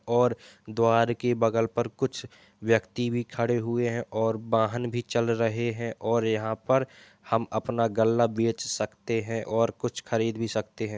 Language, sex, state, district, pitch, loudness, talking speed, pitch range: Hindi, male, Uttar Pradesh, Jalaun, 115 Hz, -27 LUFS, 180 wpm, 110-120 Hz